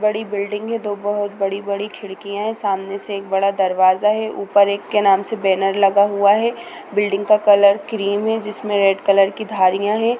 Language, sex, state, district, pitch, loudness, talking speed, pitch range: Hindi, female, Bihar, Bhagalpur, 200 Hz, -18 LUFS, 200 wpm, 195-210 Hz